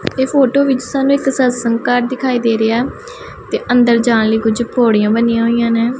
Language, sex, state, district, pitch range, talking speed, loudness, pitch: Punjabi, female, Punjab, Pathankot, 230-260 Hz, 200 wpm, -14 LUFS, 245 Hz